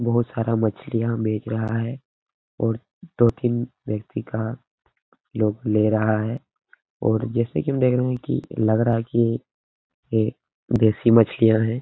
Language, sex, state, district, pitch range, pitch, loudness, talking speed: Hindi, male, Bihar, Araria, 110-120 Hz, 115 Hz, -22 LUFS, 150 wpm